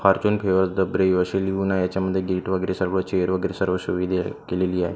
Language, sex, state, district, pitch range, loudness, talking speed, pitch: Marathi, male, Maharashtra, Gondia, 90-95 Hz, -23 LUFS, 170 wpm, 95 Hz